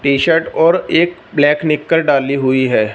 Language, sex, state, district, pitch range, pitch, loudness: Hindi, male, Punjab, Fazilka, 140-165 Hz, 150 Hz, -14 LUFS